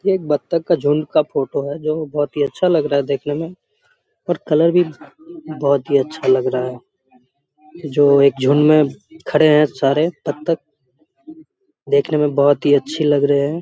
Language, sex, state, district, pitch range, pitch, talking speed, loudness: Hindi, male, Bihar, Samastipur, 140-170 Hz, 150 Hz, 185 wpm, -17 LUFS